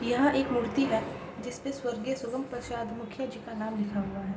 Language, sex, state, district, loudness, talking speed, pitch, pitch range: Hindi, female, Bihar, East Champaran, -32 LUFS, 220 wpm, 240 Hz, 220-260 Hz